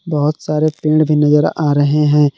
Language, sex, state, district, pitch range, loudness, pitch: Hindi, male, Jharkhand, Palamu, 150-155 Hz, -14 LUFS, 150 Hz